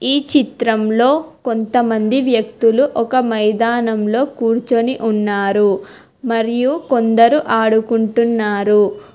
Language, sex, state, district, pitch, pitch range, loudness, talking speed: Telugu, female, Telangana, Hyderabad, 230 Hz, 220-255 Hz, -15 LUFS, 70 wpm